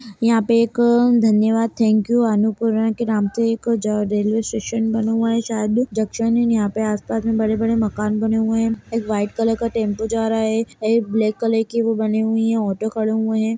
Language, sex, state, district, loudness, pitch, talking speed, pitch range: Hindi, female, Chhattisgarh, Sarguja, -19 LUFS, 225 Hz, 210 wpm, 220-230 Hz